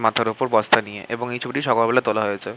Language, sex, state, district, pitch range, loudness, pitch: Bengali, male, West Bengal, Malda, 110-125 Hz, -21 LUFS, 115 Hz